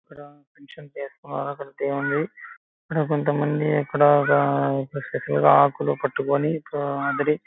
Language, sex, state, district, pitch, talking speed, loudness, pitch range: Telugu, male, Andhra Pradesh, Anantapur, 145 Hz, 80 wpm, -22 LUFS, 140-150 Hz